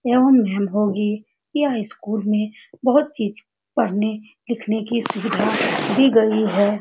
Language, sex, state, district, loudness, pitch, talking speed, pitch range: Hindi, female, Bihar, Saran, -20 LUFS, 220 Hz, 130 wpm, 210-240 Hz